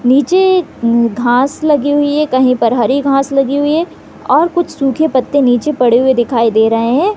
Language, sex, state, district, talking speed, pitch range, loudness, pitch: Hindi, female, Chhattisgarh, Raigarh, 200 wpm, 245-300 Hz, -12 LUFS, 275 Hz